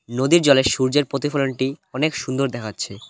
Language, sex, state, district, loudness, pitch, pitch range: Bengali, male, West Bengal, Cooch Behar, -20 LUFS, 135 Hz, 130-145 Hz